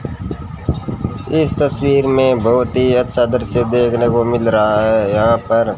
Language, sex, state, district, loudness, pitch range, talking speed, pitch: Hindi, male, Rajasthan, Bikaner, -15 LUFS, 110-125 Hz, 145 wpm, 120 Hz